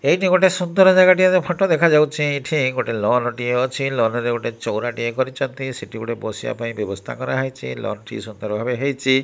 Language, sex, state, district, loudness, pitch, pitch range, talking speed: Odia, male, Odisha, Malkangiri, -19 LUFS, 130 Hz, 115-155 Hz, 190 wpm